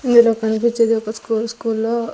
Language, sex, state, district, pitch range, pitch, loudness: Telugu, female, Andhra Pradesh, Sri Satya Sai, 220-235 Hz, 225 Hz, -18 LUFS